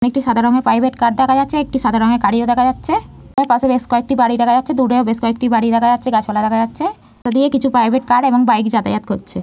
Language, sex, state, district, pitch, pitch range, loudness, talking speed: Bengali, female, West Bengal, North 24 Parganas, 245 Hz, 230-260 Hz, -15 LUFS, 240 wpm